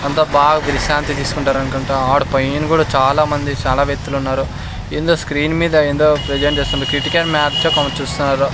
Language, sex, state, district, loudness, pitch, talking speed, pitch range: Telugu, male, Andhra Pradesh, Sri Satya Sai, -16 LUFS, 140 Hz, 150 wpm, 135-150 Hz